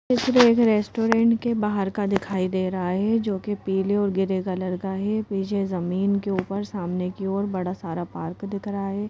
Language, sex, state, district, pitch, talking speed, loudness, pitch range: Hindi, female, Madhya Pradesh, Bhopal, 200 Hz, 210 wpm, -24 LUFS, 185-210 Hz